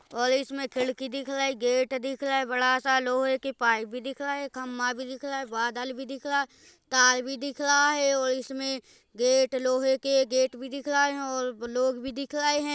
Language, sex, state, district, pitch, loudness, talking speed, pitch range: Hindi, female, Chhattisgarh, Rajnandgaon, 265 Hz, -27 LUFS, 235 wpm, 255-275 Hz